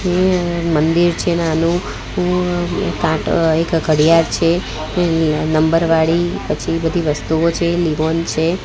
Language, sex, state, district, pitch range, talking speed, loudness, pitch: Gujarati, female, Gujarat, Gandhinagar, 160-175 Hz, 105 wpm, -16 LUFS, 165 Hz